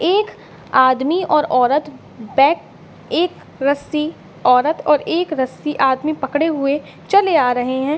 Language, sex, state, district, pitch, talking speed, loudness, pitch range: Hindi, female, Jharkhand, Sahebganj, 295 Hz, 135 wpm, -17 LUFS, 265-320 Hz